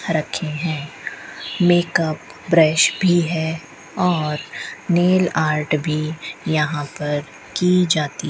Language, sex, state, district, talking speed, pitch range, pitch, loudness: Hindi, female, Rajasthan, Bikaner, 110 wpm, 150-175 Hz, 160 Hz, -19 LUFS